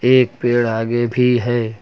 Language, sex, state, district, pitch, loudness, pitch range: Hindi, male, Uttar Pradesh, Lucknow, 120 Hz, -17 LUFS, 120-125 Hz